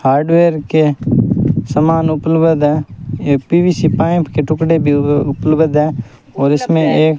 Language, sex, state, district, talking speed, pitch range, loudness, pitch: Hindi, male, Rajasthan, Bikaner, 140 wpm, 145-160 Hz, -13 LUFS, 155 Hz